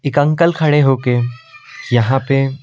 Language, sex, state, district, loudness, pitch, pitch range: Hindi, male, Delhi, New Delhi, -15 LUFS, 135 Hz, 130-145 Hz